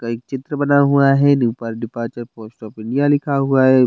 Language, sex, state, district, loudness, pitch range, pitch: Hindi, male, Bihar, Bhagalpur, -17 LUFS, 115-140 Hz, 130 Hz